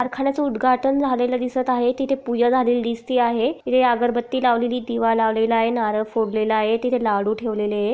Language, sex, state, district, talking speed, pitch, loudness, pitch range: Marathi, female, Maharashtra, Aurangabad, 175 wpm, 240 Hz, -20 LUFS, 225-255 Hz